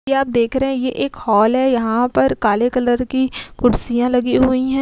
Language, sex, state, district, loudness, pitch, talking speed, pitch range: Hindi, female, Uttar Pradesh, Muzaffarnagar, -17 LUFS, 250 Hz, 225 wpm, 235-260 Hz